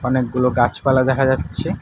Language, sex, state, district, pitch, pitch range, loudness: Bengali, male, West Bengal, Alipurduar, 130 Hz, 125-130 Hz, -18 LUFS